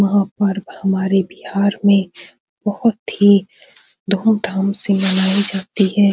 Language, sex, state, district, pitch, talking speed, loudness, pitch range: Hindi, female, Bihar, Supaul, 200 Hz, 120 wpm, -17 LUFS, 195-200 Hz